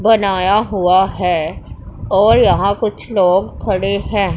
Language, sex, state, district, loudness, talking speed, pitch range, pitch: Hindi, female, Punjab, Pathankot, -15 LUFS, 125 wpm, 190-210 Hz, 200 Hz